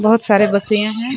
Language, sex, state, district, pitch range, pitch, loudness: Chhattisgarhi, female, Chhattisgarh, Sarguja, 205-225 Hz, 215 Hz, -15 LUFS